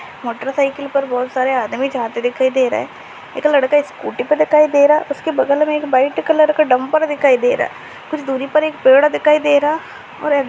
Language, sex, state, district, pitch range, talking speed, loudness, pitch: Hindi, female, Chhattisgarh, Sarguja, 265-300 Hz, 205 wpm, -15 LUFS, 285 Hz